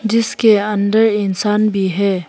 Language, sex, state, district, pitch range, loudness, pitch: Hindi, female, Arunachal Pradesh, Papum Pare, 200-215 Hz, -15 LUFS, 210 Hz